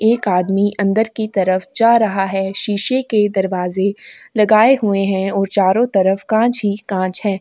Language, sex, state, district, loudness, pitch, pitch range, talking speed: Hindi, female, Goa, North and South Goa, -15 LUFS, 200 Hz, 190-220 Hz, 170 wpm